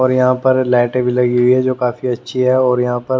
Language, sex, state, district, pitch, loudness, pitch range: Hindi, male, Haryana, Jhajjar, 125 Hz, -15 LUFS, 125-130 Hz